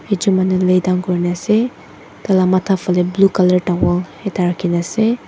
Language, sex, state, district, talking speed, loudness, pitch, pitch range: Nagamese, female, Mizoram, Aizawl, 160 wpm, -16 LUFS, 185 Hz, 180-195 Hz